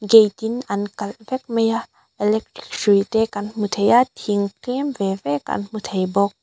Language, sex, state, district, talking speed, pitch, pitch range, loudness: Mizo, female, Mizoram, Aizawl, 205 wpm, 210 Hz, 200-225 Hz, -21 LUFS